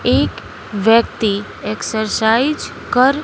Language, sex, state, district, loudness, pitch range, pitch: Hindi, female, Bihar, West Champaran, -17 LUFS, 220-250 Hz, 225 Hz